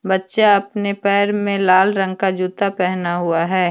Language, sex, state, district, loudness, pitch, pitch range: Hindi, female, Jharkhand, Deoghar, -17 LUFS, 195 Hz, 185-200 Hz